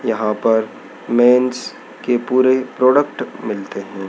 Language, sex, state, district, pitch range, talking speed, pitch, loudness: Hindi, male, Madhya Pradesh, Dhar, 105-125 Hz, 115 wpm, 120 Hz, -17 LUFS